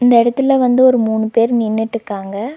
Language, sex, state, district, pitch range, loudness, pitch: Tamil, female, Tamil Nadu, Nilgiris, 220-250 Hz, -14 LUFS, 230 Hz